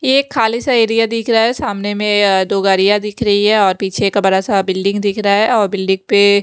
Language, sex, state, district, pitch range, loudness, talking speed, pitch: Hindi, female, Maharashtra, Mumbai Suburban, 195-225 Hz, -14 LUFS, 250 wpm, 205 Hz